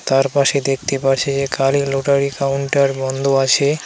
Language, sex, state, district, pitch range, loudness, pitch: Bengali, male, West Bengal, Alipurduar, 135-140 Hz, -17 LUFS, 140 Hz